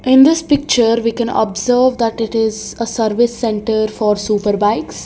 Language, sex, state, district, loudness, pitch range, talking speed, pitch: English, female, Karnataka, Bangalore, -15 LUFS, 215-240 Hz, 165 wpm, 230 Hz